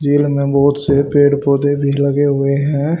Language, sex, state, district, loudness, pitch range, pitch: Hindi, male, Haryana, Charkhi Dadri, -14 LUFS, 140-145 Hz, 140 Hz